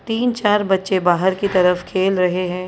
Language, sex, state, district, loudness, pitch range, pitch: Hindi, female, Maharashtra, Mumbai Suburban, -18 LUFS, 180-200 Hz, 190 Hz